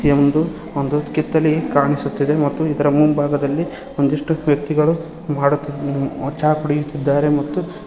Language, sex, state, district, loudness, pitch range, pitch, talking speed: Kannada, male, Karnataka, Koppal, -18 LUFS, 140-155 Hz, 145 Hz, 100 wpm